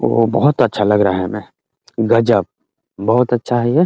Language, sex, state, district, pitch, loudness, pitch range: Hindi, male, Bihar, Muzaffarpur, 115 Hz, -15 LUFS, 105-120 Hz